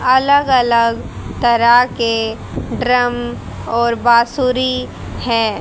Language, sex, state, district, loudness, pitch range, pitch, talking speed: Hindi, female, Haryana, Jhajjar, -15 LUFS, 235-255 Hz, 240 Hz, 85 wpm